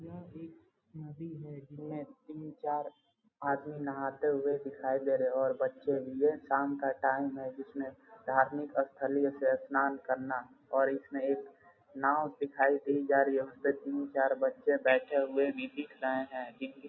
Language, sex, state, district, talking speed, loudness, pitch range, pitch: Hindi, male, Bihar, Gopalganj, 180 wpm, -33 LUFS, 135-145 Hz, 140 Hz